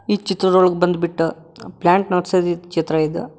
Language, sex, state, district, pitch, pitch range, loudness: Kannada, male, Karnataka, Koppal, 180 Hz, 165-185 Hz, -18 LUFS